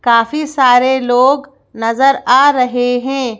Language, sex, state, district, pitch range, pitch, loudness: Hindi, female, Madhya Pradesh, Bhopal, 245-275 Hz, 255 Hz, -12 LUFS